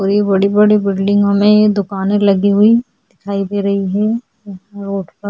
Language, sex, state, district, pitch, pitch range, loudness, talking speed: Hindi, female, Goa, North and South Goa, 200 Hz, 195-210 Hz, -14 LUFS, 180 wpm